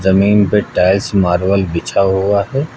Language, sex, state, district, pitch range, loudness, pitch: Hindi, male, Uttar Pradesh, Lucknow, 95-100 Hz, -14 LUFS, 100 Hz